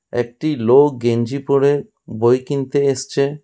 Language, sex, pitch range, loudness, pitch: Bengali, male, 120-145 Hz, -17 LUFS, 140 Hz